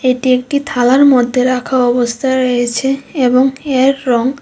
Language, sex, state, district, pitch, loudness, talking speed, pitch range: Bengali, female, Tripura, West Tripura, 255 Hz, -13 LUFS, 135 wpm, 250-270 Hz